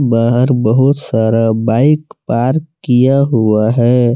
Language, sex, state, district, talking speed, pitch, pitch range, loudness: Hindi, male, Jharkhand, Palamu, 115 wpm, 120 Hz, 115-135 Hz, -12 LUFS